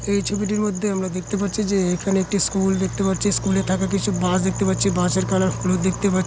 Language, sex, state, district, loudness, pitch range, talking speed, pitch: Bengali, male, West Bengal, Malda, -21 LUFS, 185-200 Hz, 240 wpm, 190 Hz